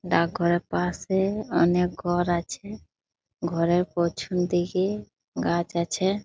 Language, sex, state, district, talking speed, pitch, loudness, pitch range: Bengali, female, West Bengal, Jalpaiguri, 115 wpm, 175 Hz, -26 LUFS, 170-190 Hz